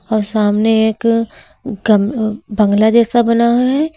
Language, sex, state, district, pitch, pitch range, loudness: Hindi, female, Uttar Pradesh, Lucknow, 225 Hz, 215-235 Hz, -13 LUFS